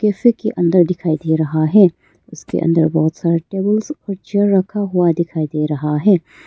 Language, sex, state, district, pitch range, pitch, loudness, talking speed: Hindi, female, Arunachal Pradesh, Papum Pare, 160-200 Hz, 175 Hz, -16 LUFS, 195 wpm